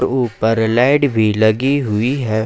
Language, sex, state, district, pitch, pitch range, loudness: Hindi, male, Jharkhand, Ranchi, 115 Hz, 110-130 Hz, -15 LUFS